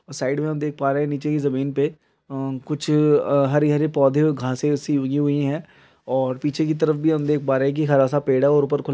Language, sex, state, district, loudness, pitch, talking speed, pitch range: Maithili, male, Bihar, Samastipur, -21 LUFS, 145 Hz, 250 wpm, 140-150 Hz